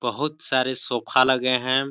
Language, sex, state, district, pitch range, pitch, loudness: Hindi, male, Chhattisgarh, Balrampur, 130-135 Hz, 130 Hz, -22 LUFS